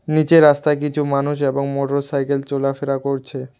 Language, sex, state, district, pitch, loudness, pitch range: Bengali, male, West Bengal, Alipurduar, 140 Hz, -18 LUFS, 135-150 Hz